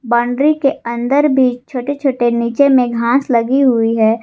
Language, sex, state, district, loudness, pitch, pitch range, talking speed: Hindi, female, Jharkhand, Garhwa, -14 LUFS, 250 Hz, 235-275 Hz, 170 wpm